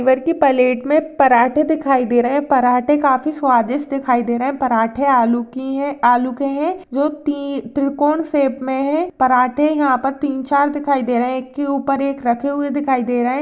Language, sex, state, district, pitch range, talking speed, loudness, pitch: Hindi, female, Rajasthan, Churu, 255-285 Hz, 205 wpm, -17 LUFS, 275 Hz